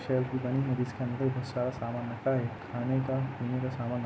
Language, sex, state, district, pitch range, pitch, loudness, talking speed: Hindi, male, Jharkhand, Sahebganj, 120-130 Hz, 125 Hz, -32 LUFS, 175 wpm